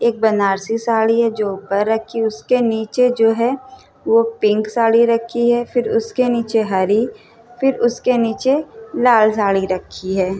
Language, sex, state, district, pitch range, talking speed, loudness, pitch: Hindi, female, Uttar Pradesh, Hamirpur, 215-240 Hz, 165 wpm, -17 LUFS, 225 Hz